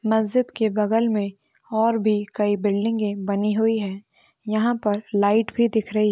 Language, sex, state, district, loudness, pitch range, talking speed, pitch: Hindi, female, Maharashtra, Nagpur, -22 LUFS, 205-225 Hz, 165 wpm, 215 Hz